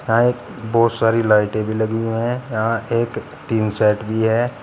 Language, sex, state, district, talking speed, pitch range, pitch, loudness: Hindi, male, Uttar Pradesh, Shamli, 195 wpm, 110-115 Hz, 115 Hz, -19 LUFS